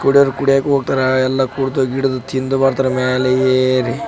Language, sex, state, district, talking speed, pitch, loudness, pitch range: Kannada, male, Karnataka, Raichur, 160 wpm, 130 Hz, -16 LUFS, 130-135 Hz